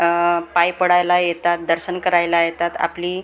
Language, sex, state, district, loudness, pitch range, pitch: Marathi, female, Maharashtra, Gondia, -18 LUFS, 170-180 Hz, 175 Hz